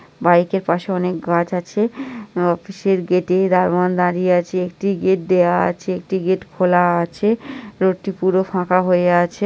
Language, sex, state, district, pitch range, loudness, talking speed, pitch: Bengali, female, West Bengal, North 24 Parganas, 180-190 Hz, -18 LUFS, 185 wpm, 185 Hz